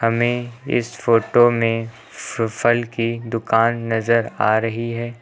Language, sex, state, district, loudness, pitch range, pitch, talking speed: Hindi, male, Uttar Pradesh, Lucknow, -19 LUFS, 115-120 Hz, 115 Hz, 140 wpm